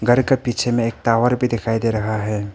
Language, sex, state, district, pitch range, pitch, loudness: Hindi, male, Arunachal Pradesh, Papum Pare, 110-120 Hz, 115 Hz, -19 LUFS